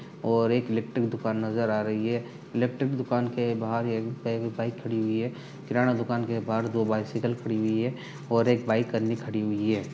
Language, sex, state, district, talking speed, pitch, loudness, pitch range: Hindi, male, Uttar Pradesh, Budaun, 200 wpm, 115 Hz, -28 LUFS, 110-120 Hz